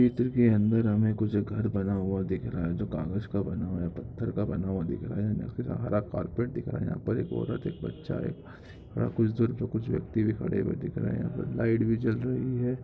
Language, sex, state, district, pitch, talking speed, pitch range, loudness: Hindi, male, Bihar, Samastipur, 110 Hz, 245 wpm, 100-120 Hz, -30 LUFS